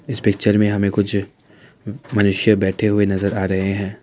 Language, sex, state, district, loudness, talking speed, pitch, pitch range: Hindi, male, Assam, Kamrup Metropolitan, -18 LUFS, 180 wpm, 105 Hz, 100-105 Hz